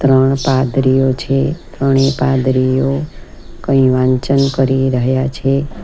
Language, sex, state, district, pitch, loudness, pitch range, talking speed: Gujarati, female, Gujarat, Valsad, 135 Hz, -14 LUFS, 130-135 Hz, 100 wpm